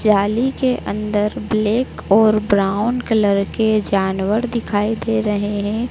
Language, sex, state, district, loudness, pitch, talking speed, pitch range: Hindi, female, Madhya Pradesh, Dhar, -18 LUFS, 215 Hz, 130 wpm, 205-225 Hz